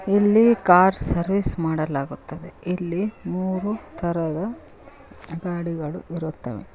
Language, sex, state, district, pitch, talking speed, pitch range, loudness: Kannada, female, Karnataka, Koppal, 175 Hz, 80 wpm, 160-190 Hz, -23 LUFS